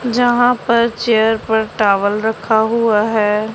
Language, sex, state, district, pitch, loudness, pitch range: Hindi, female, Punjab, Pathankot, 220 Hz, -15 LUFS, 215-235 Hz